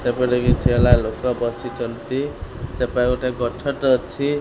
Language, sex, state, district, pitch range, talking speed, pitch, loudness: Odia, male, Odisha, Khordha, 120-130 Hz, 135 wpm, 125 Hz, -21 LUFS